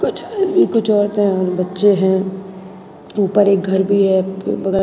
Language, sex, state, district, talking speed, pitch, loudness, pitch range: Hindi, female, Gujarat, Valsad, 160 wpm, 195 Hz, -16 LUFS, 190-205 Hz